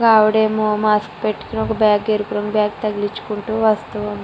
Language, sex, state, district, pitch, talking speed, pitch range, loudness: Telugu, female, Andhra Pradesh, Srikakulam, 215 Hz, 185 wpm, 210-220 Hz, -18 LUFS